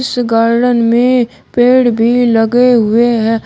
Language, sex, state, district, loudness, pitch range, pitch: Hindi, male, Uttar Pradesh, Shamli, -11 LUFS, 230-245 Hz, 240 Hz